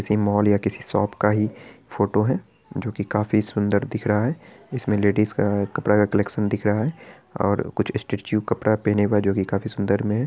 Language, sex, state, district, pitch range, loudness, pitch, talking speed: Hindi, male, Bihar, Araria, 105-110 Hz, -22 LUFS, 105 Hz, 210 wpm